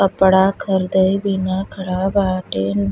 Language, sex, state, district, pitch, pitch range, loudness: Bhojpuri, female, Uttar Pradesh, Deoria, 190 Hz, 185-195 Hz, -18 LUFS